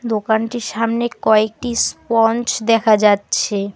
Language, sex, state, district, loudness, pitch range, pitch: Bengali, female, West Bengal, Alipurduar, -17 LUFS, 215-235 Hz, 225 Hz